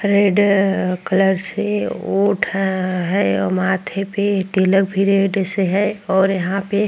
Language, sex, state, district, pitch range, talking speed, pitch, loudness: Hindi, female, Uttar Pradesh, Muzaffarnagar, 185-200 Hz, 150 wpm, 195 Hz, -18 LUFS